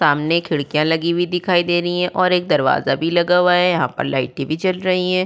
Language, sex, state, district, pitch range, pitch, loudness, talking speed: Hindi, female, Uttar Pradesh, Budaun, 160-180 Hz, 175 Hz, -18 LUFS, 250 wpm